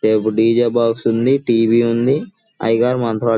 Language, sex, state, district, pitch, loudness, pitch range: Telugu, male, Andhra Pradesh, Guntur, 115 Hz, -16 LUFS, 115-125 Hz